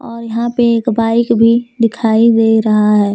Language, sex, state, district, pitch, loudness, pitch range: Hindi, female, Jharkhand, Deoghar, 230 Hz, -12 LUFS, 225-235 Hz